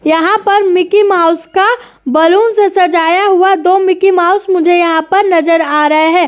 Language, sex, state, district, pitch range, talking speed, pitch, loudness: Hindi, female, Uttar Pradesh, Jyotiba Phule Nagar, 330-390 Hz, 180 wpm, 360 Hz, -10 LUFS